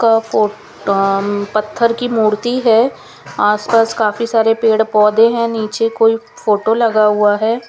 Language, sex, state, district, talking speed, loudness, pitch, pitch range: Hindi, female, Chandigarh, Chandigarh, 140 wpm, -14 LUFS, 225 Hz, 210-230 Hz